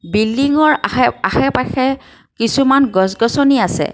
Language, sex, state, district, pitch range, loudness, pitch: Assamese, female, Assam, Kamrup Metropolitan, 210-275 Hz, -14 LUFS, 260 Hz